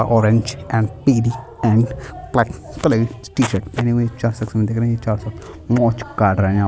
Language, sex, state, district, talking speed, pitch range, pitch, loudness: Hindi, male, Chhattisgarh, Kabirdham, 205 wpm, 110-120 Hz, 115 Hz, -19 LUFS